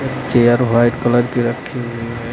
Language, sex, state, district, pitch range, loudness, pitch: Hindi, male, Uttar Pradesh, Lucknow, 120-125 Hz, -16 LUFS, 120 Hz